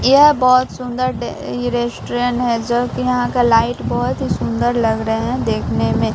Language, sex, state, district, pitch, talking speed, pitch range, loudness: Hindi, female, Bihar, Katihar, 245 Hz, 185 wpm, 240-250 Hz, -17 LUFS